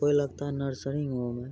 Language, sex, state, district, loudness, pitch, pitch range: Hindi, male, Bihar, Araria, -31 LUFS, 140 Hz, 130-145 Hz